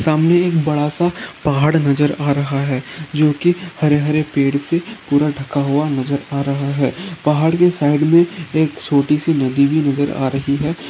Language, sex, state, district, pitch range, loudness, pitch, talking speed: Hindi, male, Uttarakhand, Uttarkashi, 140-160 Hz, -17 LUFS, 150 Hz, 185 wpm